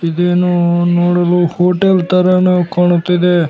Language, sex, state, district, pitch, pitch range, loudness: Kannada, male, Karnataka, Bellary, 175 Hz, 175-180 Hz, -12 LUFS